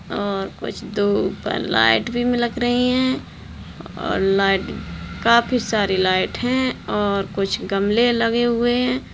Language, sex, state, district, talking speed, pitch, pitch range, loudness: Hindi, female, Bihar, Darbhanga, 145 wpm, 230 Hz, 200-245 Hz, -20 LUFS